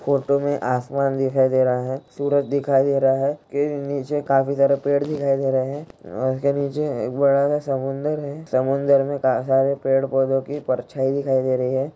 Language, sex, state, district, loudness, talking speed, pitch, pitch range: Hindi, male, Bihar, Jahanabad, -21 LUFS, 195 wpm, 140 Hz, 135-140 Hz